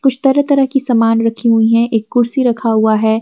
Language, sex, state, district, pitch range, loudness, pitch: Hindi, female, Jharkhand, Garhwa, 225-265 Hz, -13 LUFS, 230 Hz